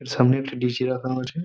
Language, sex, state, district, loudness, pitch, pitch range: Bengali, male, West Bengal, Purulia, -23 LUFS, 130 Hz, 125-135 Hz